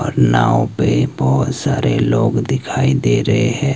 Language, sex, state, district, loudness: Hindi, male, Himachal Pradesh, Shimla, -16 LUFS